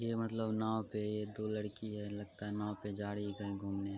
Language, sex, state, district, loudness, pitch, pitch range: Hindi, male, Bihar, Araria, -40 LUFS, 105 Hz, 105-110 Hz